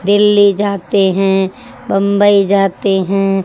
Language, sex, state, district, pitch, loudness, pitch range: Hindi, female, Haryana, Charkhi Dadri, 200 Hz, -12 LUFS, 195-205 Hz